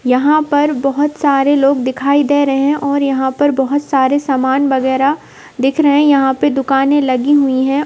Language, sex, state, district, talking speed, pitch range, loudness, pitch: Hindi, female, Uttar Pradesh, Etah, 190 wpm, 265-290 Hz, -13 LUFS, 280 Hz